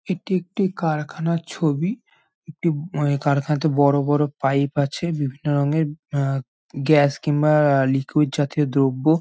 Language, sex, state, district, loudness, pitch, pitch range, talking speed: Bengali, male, West Bengal, Jhargram, -21 LUFS, 150 Hz, 140-160 Hz, 115 wpm